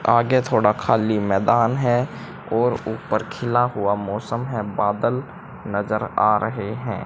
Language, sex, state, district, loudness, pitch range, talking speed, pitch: Hindi, male, Haryana, Jhajjar, -21 LUFS, 105-120 Hz, 135 wpm, 110 Hz